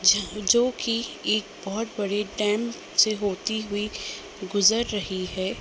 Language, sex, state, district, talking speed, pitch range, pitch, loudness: Hindi, female, Uttar Pradesh, Gorakhpur, 140 wpm, 200-220 Hz, 210 Hz, -25 LUFS